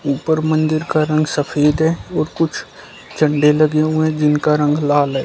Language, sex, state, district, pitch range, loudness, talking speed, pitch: Hindi, male, Haryana, Charkhi Dadri, 150-155 Hz, -16 LUFS, 170 wpm, 155 Hz